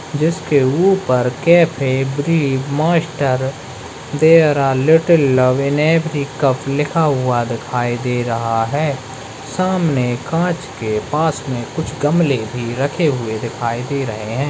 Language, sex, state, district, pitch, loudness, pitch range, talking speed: Hindi, male, Uttarakhand, Tehri Garhwal, 140 Hz, -17 LUFS, 125-155 Hz, 130 wpm